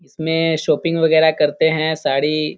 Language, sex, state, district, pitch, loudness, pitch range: Hindi, male, Bihar, Jahanabad, 160 Hz, -17 LUFS, 155-160 Hz